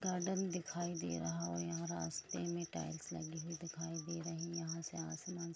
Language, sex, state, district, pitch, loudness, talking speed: Hindi, female, Jharkhand, Jamtara, 165 Hz, -43 LUFS, 195 wpm